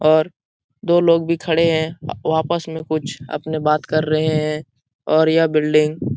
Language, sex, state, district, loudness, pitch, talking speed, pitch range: Hindi, male, Bihar, Jahanabad, -18 LUFS, 155 Hz, 185 wpm, 155-165 Hz